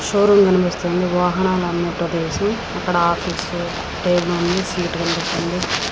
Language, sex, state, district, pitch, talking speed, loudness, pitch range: Telugu, female, Andhra Pradesh, Srikakulam, 175 Hz, 120 wpm, -19 LUFS, 175-185 Hz